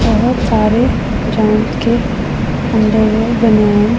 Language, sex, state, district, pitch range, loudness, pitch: Hindi, female, Punjab, Pathankot, 215-225 Hz, -13 LUFS, 215 Hz